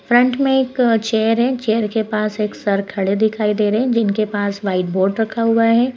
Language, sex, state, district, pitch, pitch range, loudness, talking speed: Hindi, female, Uttar Pradesh, Etah, 220 Hz, 205-230 Hz, -17 LUFS, 220 wpm